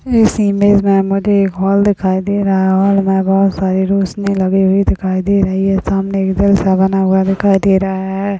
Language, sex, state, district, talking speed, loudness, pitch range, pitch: Hindi, female, Rajasthan, Churu, 195 wpm, -13 LUFS, 190-200 Hz, 195 Hz